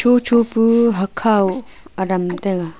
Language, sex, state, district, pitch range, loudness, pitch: Wancho, female, Arunachal Pradesh, Longding, 190-235 Hz, -16 LUFS, 215 Hz